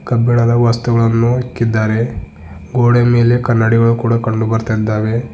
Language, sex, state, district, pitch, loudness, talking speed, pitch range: Kannada, male, Karnataka, Bidar, 115 Hz, -14 LUFS, 90 wpm, 110-120 Hz